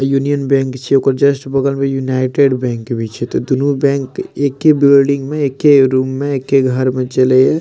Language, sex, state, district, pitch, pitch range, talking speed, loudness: Maithili, male, Bihar, Madhepura, 135 Hz, 130-140 Hz, 180 wpm, -14 LUFS